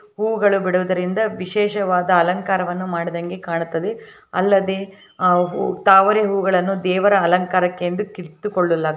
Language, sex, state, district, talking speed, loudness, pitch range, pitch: Kannada, female, Karnataka, Bellary, 95 wpm, -19 LUFS, 180-205 Hz, 185 Hz